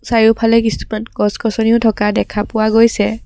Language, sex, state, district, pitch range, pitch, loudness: Assamese, female, Assam, Sonitpur, 215-230 Hz, 225 Hz, -14 LUFS